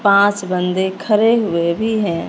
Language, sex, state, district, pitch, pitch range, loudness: Hindi, male, Punjab, Fazilka, 200 Hz, 180-215 Hz, -16 LUFS